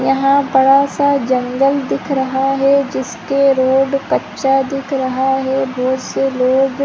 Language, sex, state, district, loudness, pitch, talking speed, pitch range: Hindi, female, Chhattisgarh, Rajnandgaon, -15 LUFS, 270 Hz, 140 wpm, 265-275 Hz